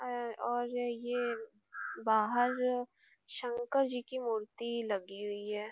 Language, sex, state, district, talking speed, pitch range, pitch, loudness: Hindi, female, Bihar, Gopalganj, 115 wpm, 220-245 Hz, 240 Hz, -35 LUFS